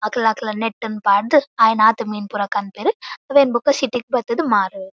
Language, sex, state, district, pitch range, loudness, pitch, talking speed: Tulu, female, Karnataka, Dakshina Kannada, 210-255 Hz, -18 LUFS, 225 Hz, 170 wpm